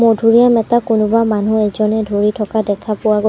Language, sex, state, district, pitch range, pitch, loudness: Assamese, female, Assam, Sonitpur, 210-225 Hz, 215 Hz, -14 LUFS